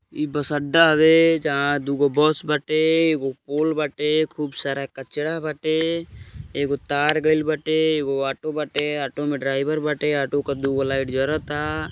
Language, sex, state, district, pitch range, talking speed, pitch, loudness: Bhojpuri, male, Uttar Pradesh, Gorakhpur, 140-155 Hz, 155 wpm, 150 Hz, -22 LUFS